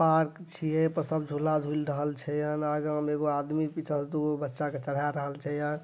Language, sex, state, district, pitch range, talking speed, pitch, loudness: Maithili, male, Bihar, Madhepura, 145-155 Hz, 205 wpm, 150 Hz, -30 LUFS